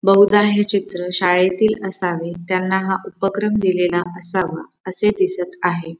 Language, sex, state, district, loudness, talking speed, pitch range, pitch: Marathi, female, Maharashtra, Pune, -18 LUFS, 130 wpm, 180-200 Hz, 185 Hz